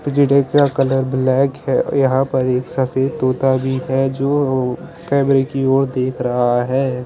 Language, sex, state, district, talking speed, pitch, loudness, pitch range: Hindi, male, Chandigarh, Chandigarh, 170 wpm, 135 Hz, -17 LUFS, 130-140 Hz